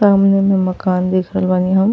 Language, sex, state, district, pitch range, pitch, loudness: Bhojpuri, female, Uttar Pradesh, Ghazipur, 185-195 Hz, 190 Hz, -15 LUFS